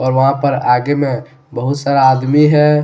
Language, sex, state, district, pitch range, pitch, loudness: Hindi, male, Jharkhand, Deoghar, 130-145 Hz, 140 Hz, -13 LUFS